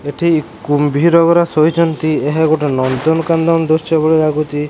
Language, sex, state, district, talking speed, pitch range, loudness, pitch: Odia, male, Odisha, Khordha, 140 wpm, 150-165 Hz, -13 LUFS, 155 Hz